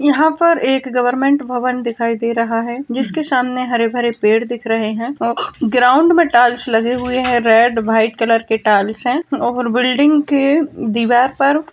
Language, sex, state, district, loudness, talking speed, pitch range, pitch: Hindi, female, Bihar, Jahanabad, -15 LUFS, 180 wpm, 230-275 Hz, 245 Hz